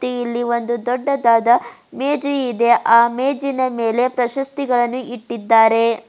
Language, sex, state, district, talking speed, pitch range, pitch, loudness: Kannada, female, Karnataka, Bidar, 110 wpm, 235-260 Hz, 245 Hz, -17 LUFS